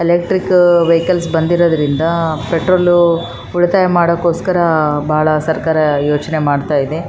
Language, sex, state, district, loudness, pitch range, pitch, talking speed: Kannada, female, Karnataka, Raichur, -13 LUFS, 155-175 Hz, 165 Hz, 70 wpm